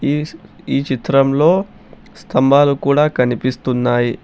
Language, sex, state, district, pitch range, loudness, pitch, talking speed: Telugu, male, Telangana, Hyderabad, 125-145 Hz, -15 LUFS, 135 Hz, 85 wpm